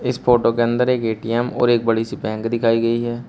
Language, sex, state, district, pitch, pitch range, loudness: Hindi, male, Uttar Pradesh, Shamli, 120 Hz, 115-120 Hz, -19 LUFS